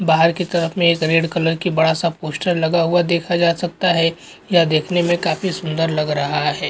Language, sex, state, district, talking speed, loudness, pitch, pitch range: Hindi, male, Uttarakhand, Uttarkashi, 230 wpm, -18 LUFS, 170 Hz, 160-175 Hz